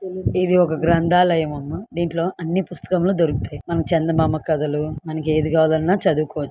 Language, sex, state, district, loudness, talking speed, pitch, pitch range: Telugu, female, Andhra Pradesh, Guntur, -20 LUFS, 130 wpm, 165 Hz, 155-175 Hz